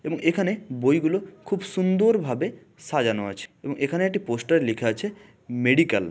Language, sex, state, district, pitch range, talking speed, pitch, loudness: Bengali, male, West Bengal, Malda, 125-190 Hz, 155 wpm, 165 Hz, -24 LUFS